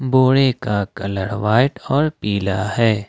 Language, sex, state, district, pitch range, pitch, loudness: Hindi, male, Jharkhand, Ranchi, 100-130 Hz, 110 Hz, -18 LUFS